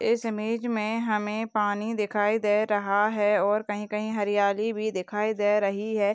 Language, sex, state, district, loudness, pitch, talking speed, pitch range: Hindi, female, Uttar Pradesh, Ghazipur, -26 LUFS, 210 Hz, 165 wpm, 205-220 Hz